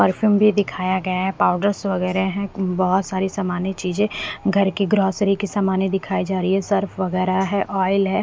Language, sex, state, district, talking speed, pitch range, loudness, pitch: Hindi, female, Haryana, Rohtak, 190 wpm, 185-200 Hz, -20 LUFS, 195 Hz